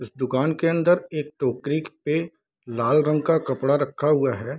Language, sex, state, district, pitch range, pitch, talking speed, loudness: Hindi, male, Bihar, Darbhanga, 135-160 Hz, 150 Hz, 185 wpm, -23 LUFS